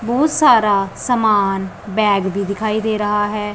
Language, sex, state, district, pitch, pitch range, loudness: Hindi, female, Punjab, Pathankot, 210 Hz, 200-220 Hz, -16 LUFS